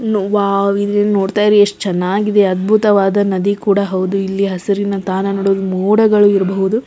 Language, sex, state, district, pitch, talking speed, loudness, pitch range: Kannada, female, Karnataka, Belgaum, 200 Hz, 140 wpm, -14 LUFS, 195-205 Hz